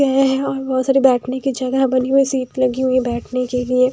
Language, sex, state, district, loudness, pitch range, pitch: Hindi, female, Bihar, Patna, -18 LUFS, 255-270 Hz, 260 Hz